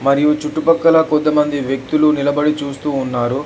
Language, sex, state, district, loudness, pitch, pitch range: Telugu, male, Telangana, Hyderabad, -16 LUFS, 150 Hz, 140-150 Hz